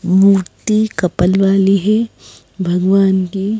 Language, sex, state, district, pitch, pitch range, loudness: Hindi, female, Madhya Pradesh, Bhopal, 195 Hz, 185-200 Hz, -14 LUFS